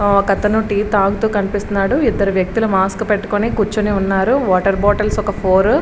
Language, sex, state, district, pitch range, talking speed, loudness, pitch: Telugu, female, Andhra Pradesh, Srikakulam, 195-210 Hz, 155 wpm, -16 LUFS, 205 Hz